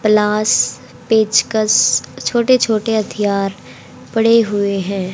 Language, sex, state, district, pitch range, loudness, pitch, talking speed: Hindi, female, Haryana, Charkhi Dadri, 190-220 Hz, -15 LUFS, 210 Hz, 95 wpm